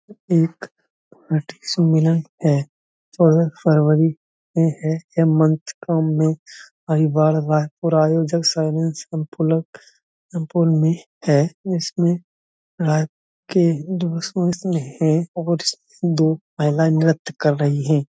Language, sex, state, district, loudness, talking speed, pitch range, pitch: Hindi, male, Uttar Pradesh, Budaun, -19 LUFS, 70 wpm, 155-170 Hz, 160 Hz